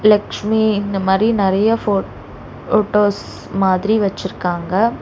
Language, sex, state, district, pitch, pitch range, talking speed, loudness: Tamil, female, Tamil Nadu, Chennai, 200 Hz, 190-215 Hz, 95 wpm, -17 LUFS